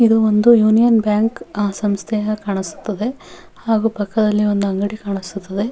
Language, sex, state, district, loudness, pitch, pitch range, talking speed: Kannada, female, Karnataka, Bellary, -17 LUFS, 210 Hz, 200-225 Hz, 125 wpm